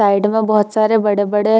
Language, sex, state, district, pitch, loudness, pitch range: Hindi, female, Bihar, Purnia, 210 Hz, -15 LUFS, 205-220 Hz